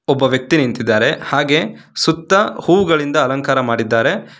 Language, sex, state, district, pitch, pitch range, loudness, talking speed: Kannada, male, Karnataka, Bangalore, 145 Hz, 130-165 Hz, -15 LUFS, 110 wpm